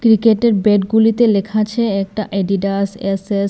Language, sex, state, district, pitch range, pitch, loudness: Bengali, female, Tripura, West Tripura, 195-220 Hz, 210 Hz, -15 LUFS